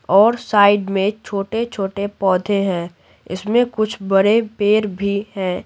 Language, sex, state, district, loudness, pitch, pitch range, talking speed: Hindi, female, Bihar, Patna, -18 LUFS, 200 Hz, 195-215 Hz, 125 wpm